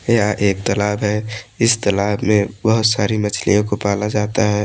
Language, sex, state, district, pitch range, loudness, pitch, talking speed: Hindi, male, Odisha, Malkangiri, 105-110 Hz, -17 LUFS, 105 Hz, 180 wpm